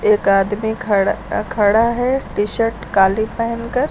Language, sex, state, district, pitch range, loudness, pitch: Hindi, female, Uttar Pradesh, Lucknow, 205-240 Hz, -17 LUFS, 225 Hz